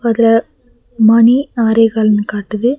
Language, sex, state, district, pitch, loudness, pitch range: Tamil, female, Tamil Nadu, Nilgiris, 225 Hz, -12 LUFS, 220-235 Hz